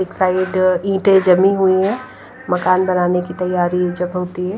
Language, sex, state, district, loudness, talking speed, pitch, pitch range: Hindi, female, Punjab, Pathankot, -16 LUFS, 155 wpm, 185 Hz, 180-190 Hz